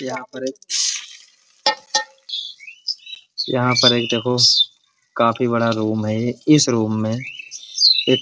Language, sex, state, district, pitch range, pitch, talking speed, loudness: Hindi, male, Uttar Pradesh, Muzaffarnagar, 115-130 Hz, 120 Hz, 115 wpm, -18 LUFS